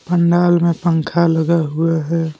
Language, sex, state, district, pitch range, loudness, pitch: Hindi, male, Jharkhand, Deoghar, 165-170 Hz, -16 LUFS, 170 Hz